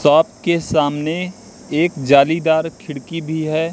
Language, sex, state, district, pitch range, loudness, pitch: Hindi, male, Madhya Pradesh, Katni, 150-170 Hz, -17 LUFS, 160 Hz